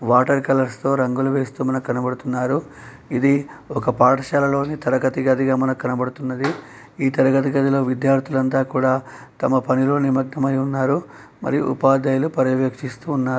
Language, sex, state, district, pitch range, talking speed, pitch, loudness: Telugu, male, Telangana, Nalgonda, 130-140 Hz, 120 wpm, 135 Hz, -20 LUFS